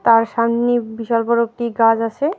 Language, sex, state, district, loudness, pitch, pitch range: Bengali, female, West Bengal, Alipurduar, -17 LUFS, 230 Hz, 230-235 Hz